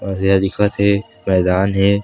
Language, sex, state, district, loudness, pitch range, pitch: Chhattisgarhi, male, Chhattisgarh, Sarguja, -16 LUFS, 95-100 Hz, 95 Hz